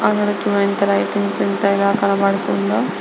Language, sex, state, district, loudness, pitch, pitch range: Telugu, female, Andhra Pradesh, Anantapur, -18 LUFS, 200 Hz, 200-205 Hz